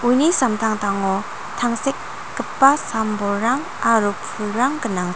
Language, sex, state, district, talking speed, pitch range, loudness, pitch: Garo, female, Meghalaya, North Garo Hills, 95 wpm, 205-255 Hz, -20 LUFS, 225 Hz